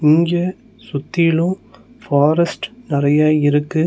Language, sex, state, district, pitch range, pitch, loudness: Tamil, male, Tamil Nadu, Nilgiris, 145-170 Hz, 155 Hz, -17 LUFS